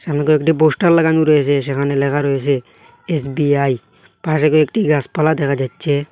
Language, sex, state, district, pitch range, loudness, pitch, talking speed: Bengali, male, Assam, Hailakandi, 140-155 Hz, -16 LUFS, 145 Hz, 145 wpm